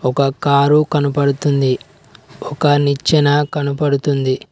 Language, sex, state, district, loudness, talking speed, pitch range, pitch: Telugu, male, Telangana, Mahabubabad, -15 LUFS, 80 wpm, 140-145 Hz, 145 Hz